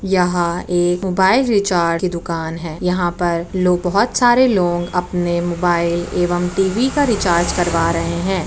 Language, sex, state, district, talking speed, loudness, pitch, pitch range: Hindi, female, Uttar Pradesh, Muzaffarnagar, 155 wpm, -17 LUFS, 175 Hz, 170-190 Hz